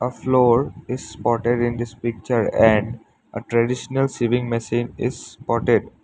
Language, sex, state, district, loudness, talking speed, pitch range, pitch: English, male, Assam, Sonitpur, -21 LUFS, 130 wpm, 115-125 Hz, 120 Hz